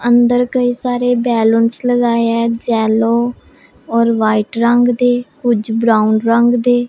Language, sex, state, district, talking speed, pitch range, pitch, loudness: Hindi, female, Punjab, Pathankot, 140 wpm, 230-245 Hz, 235 Hz, -14 LUFS